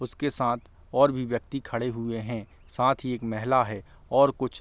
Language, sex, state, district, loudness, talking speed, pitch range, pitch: Hindi, male, Uttar Pradesh, Varanasi, -26 LUFS, 210 wpm, 115-130 Hz, 120 Hz